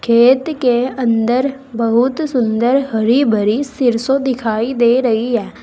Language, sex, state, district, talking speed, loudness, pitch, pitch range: Hindi, female, Uttar Pradesh, Saharanpur, 130 wpm, -15 LUFS, 245 Hz, 230-265 Hz